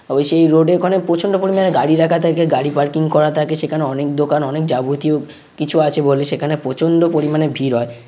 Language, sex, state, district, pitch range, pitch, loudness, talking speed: Bengali, male, West Bengal, North 24 Parganas, 145-165 Hz, 155 Hz, -15 LUFS, 210 wpm